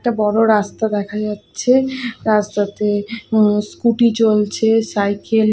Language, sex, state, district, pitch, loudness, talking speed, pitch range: Bengali, female, Odisha, Khordha, 215 Hz, -17 LUFS, 110 wpm, 210-225 Hz